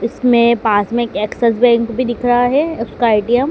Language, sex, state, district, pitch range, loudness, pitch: Hindi, female, Madhya Pradesh, Dhar, 230-245 Hz, -14 LUFS, 235 Hz